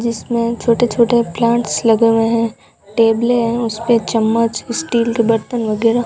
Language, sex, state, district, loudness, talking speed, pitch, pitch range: Hindi, female, Rajasthan, Bikaner, -15 LUFS, 160 wpm, 230 Hz, 225-235 Hz